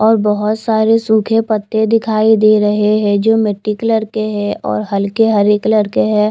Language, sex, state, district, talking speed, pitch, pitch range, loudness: Hindi, female, Chandigarh, Chandigarh, 190 wpm, 215 Hz, 210-220 Hz, -13 LUFS